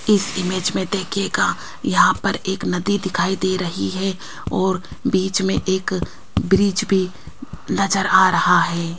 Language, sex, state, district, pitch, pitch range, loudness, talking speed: Hindi, female, Rajasthan, Jaipur, 190 Hz, 185-195 Hz, -19 LUFS, 145 wpm